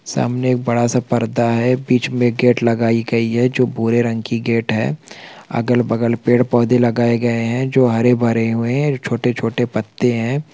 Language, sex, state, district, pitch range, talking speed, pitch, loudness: Hindi, male, Chhattisgarh, Balrampur, 115-125 Hz, 165 wpm, 120 Hz, -17 LUFS